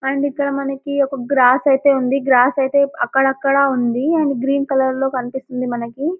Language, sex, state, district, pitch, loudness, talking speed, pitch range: Telugu, female, Telangana, Karimnagar, 270 Hz, -17 LUFS, 175 wpm, 260-280 Hz